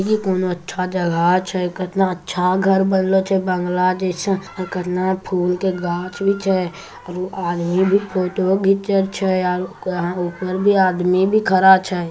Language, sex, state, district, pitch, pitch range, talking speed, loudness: Hindi, female, Bihar, Begusarai, 185 Hz, 180-190 Hz, 165 wpm, -19 LUFS